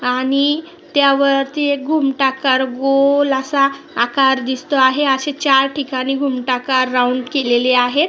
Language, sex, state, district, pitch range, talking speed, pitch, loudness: Marathi, female, Maharashtra, Sindhudurg, 260-285 Hz, 120 wpm, 270 Hz, -16 LUFS